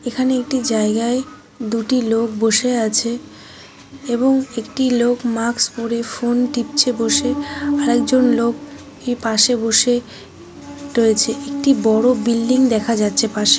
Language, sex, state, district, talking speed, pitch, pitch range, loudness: Bengali, female, West Bengal, Jhargram, 125 wpm, 245 Hz, 230-260 Hz, -17 LUFS